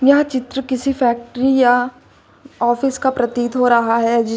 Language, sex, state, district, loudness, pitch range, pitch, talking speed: Hindi, female, Uttar Pradesh, Lucknow, -17 LUFS, 240-265 Hz, 250 Hz, 165 wpm